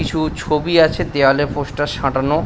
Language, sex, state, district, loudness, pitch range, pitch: Bengali, male, West Bengal, Paschim Medinipur, -17 LUFS, 140-155 Hz, 145 Hz